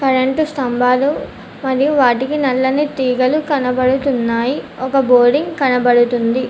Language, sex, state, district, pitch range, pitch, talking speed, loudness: Telugu, female, Telangana, Komaram Bheem, 250-275 Hz, 260 Hz, 90 wpm, -15 LUFS